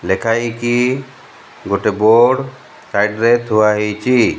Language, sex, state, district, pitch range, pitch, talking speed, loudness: Odia, male, Odisha, Malkangiri, 105-125 Hz, 115 Hz, 110 wpm, -15 LUFS